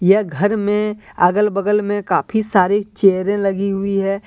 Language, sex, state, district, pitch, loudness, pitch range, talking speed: Hindi, male, Jharkhand, Deoghar, 200 Hz, -17 LUFS, 195-210 Hz, 170 wpm